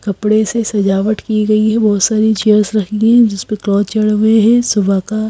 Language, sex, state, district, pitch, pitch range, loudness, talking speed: Hindi, female, Madhya Pradesh, Bhopal, 215 Hz, 205-220 Hz, -13 LUFS, 225 wpm